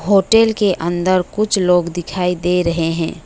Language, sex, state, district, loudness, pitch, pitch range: Hindi, female, West Bengal, Alipurduar, -16 LUFS, 180 Hz, 175-195 Hz